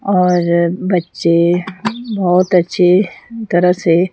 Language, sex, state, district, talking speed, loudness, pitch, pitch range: Hindi, female, Himachal Pradesh, Shimla, 85 wpm, -14 LUFS, 180 Hz, 175-190 Hz